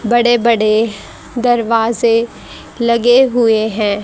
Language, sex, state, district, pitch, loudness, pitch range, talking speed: Hindi, female, Haryana, Charkhi Dadri, 235 Hz, -13 LUFS, 220-240 Hz, 90 wpm